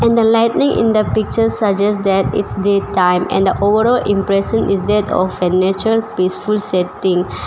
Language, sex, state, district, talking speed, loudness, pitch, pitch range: English, female, Arunachal Pradesh, Papum Pare, 170 wpm, -15 LUFS, 200 Hz, 190-220 Hz